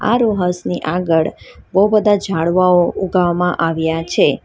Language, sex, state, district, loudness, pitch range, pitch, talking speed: Gujarati, female, Gujarat, Valsad, -16 LUFS, 165-195 Hz, 180 Hz, 150 wpm